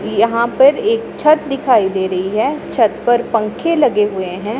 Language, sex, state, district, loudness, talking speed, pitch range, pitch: Hindi, male, Punjab, Pathankot, -15 LUFS, 185 wpm, 205-275 Hz, 230 Hz